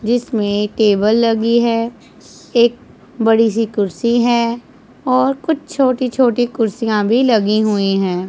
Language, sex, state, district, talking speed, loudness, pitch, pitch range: Hindi, male, Punjab, Pathankot, 130 wpm, -15 LUFS, 230 Hz, 215-245 Hz